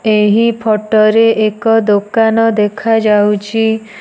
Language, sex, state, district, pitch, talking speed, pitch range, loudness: Odia, female, Odisha, Nuapada, 220 Hz, 105 wpm, 210-225 Hz, -12 LUFS